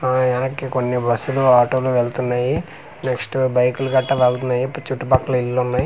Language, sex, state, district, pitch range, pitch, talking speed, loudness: Telugu, male, Andhra Pradesh, Manyam, 125-130 Hz, 130 Hz, 155 wpm, -19 LUFS